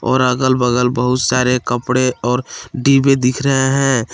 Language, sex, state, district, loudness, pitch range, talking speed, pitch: Hindi, male, Jharkhand, Palamu, -15 LUFS, 125-135 Hz, 160 wpm, 125 Hz